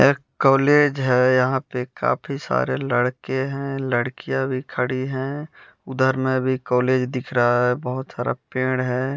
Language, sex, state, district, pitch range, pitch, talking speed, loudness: Hindi, male, Bihar, West Champaran, 125-135 Hz, 130 Hz, 155 wpm, -21 LUFS